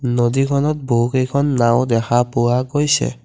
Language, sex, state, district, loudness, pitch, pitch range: Assamese, male, Assam, Kamrup Metropolitan, -17 LUFS, 125 Hz, 120-140 Hz